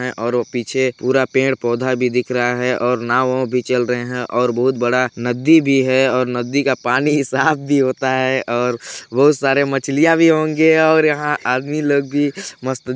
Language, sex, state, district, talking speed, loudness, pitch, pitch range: Hindi, male, Chhattisgarh, Balrampur, 200 wpm, -16 LUFS, 130 Hz, 125-140 Hz